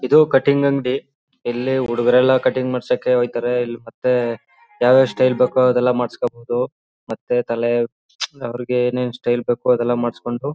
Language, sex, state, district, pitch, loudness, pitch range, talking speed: Kannada, male, Karnataka, Chamarajanagar, 125 Hz, -19 LUFS, 120-130 Hz, 135 wpm